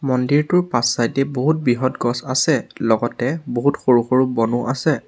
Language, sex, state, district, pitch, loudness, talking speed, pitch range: Assamese, male, Assam, Sonitpur, 130 Hz, -19 LUFS, 165 wpm, 120-140 Hz